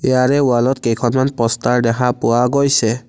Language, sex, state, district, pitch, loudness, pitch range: Assamese, male, Assam, Kamrup Metropolitan, 125 Hz, -15 LUFS, 115-130 Hz